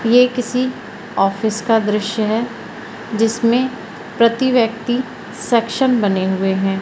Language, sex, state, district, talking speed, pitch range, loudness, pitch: Hindi, female, Madhya Pradesh, Umaria, 115 wpm, 210-245 Hz, -17 LUFS, 225 Hz